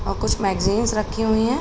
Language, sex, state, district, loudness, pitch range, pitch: Hindi, female, Uttar Pradesh, Muzaffarnagar, -21 LUFS, 185-225 Hz, 215 Hz